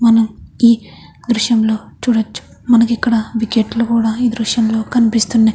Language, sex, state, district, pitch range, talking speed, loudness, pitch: Telugu, female, Andhra Pradesh, Chittoor, 225-235 Hz, 140 wpm, -15 LUFS, 230 Hz